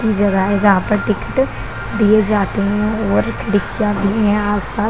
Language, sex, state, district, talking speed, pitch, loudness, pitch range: Hindi, female, Bihar, Kishanganj, 195 wpm, 205 Hz, -16 LUFS, 200-215 Hz